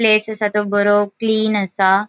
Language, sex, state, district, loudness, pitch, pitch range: Konkani, female, Goa, North and South Goa, -17 LUFS, 210 Hz, 205-215 Hz